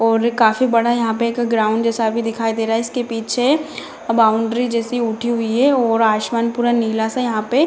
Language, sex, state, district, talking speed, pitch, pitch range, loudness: Hindi, female, Bihar, Jamui, 220 wpm, 230 Hz, 225-240 Hz, -17 LUFS